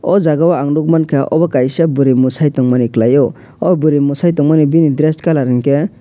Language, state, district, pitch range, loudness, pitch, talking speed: Kokborok, Tripura, West Tripura, 135-160 Hz, -13 LUFS, 145 Hz, 180 wpm